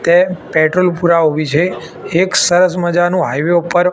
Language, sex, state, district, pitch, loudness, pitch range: Gujarati, male, Gujarat, Gandhinagar, 175 Hz, -13 LUFS, 165-180 Hz